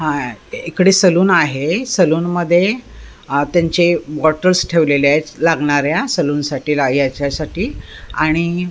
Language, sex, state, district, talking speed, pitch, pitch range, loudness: Marathi, female, Maharashtra, Mumbai Suburban, 125 wpm, 165 Hz, 145-180 Hz, -15 LUFS